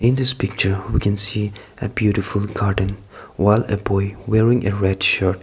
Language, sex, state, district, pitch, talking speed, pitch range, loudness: English, male, Nagaland, Kohima, 100 Hz, 165 wpm, 95-105 Hz, -19 LUFS